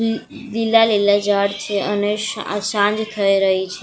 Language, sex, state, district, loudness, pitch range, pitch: Gujarati, female, Gujarat, Gandhinagar, -18 LUFS, 200-225 Hz, 205 Hz